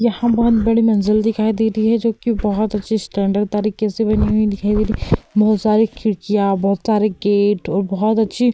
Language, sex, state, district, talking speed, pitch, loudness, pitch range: Hindi, female, Uttar Pradesh, Hamirpur, 210 wpm, 215 Hz, -17 LUFS, 205-220 Hz